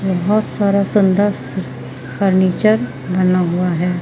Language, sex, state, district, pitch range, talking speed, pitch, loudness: Hindi, female, Madhya Pradesh, Umaria, 175-200 Hz, 105 wpm, 185 Hz, -16 LUFS